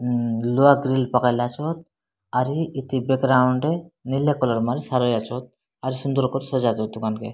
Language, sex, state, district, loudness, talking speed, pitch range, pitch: Odia, male, Odisha, Malkangiri, -22 LUFS, 165 wpm, 120-135 Hz, 130 Hz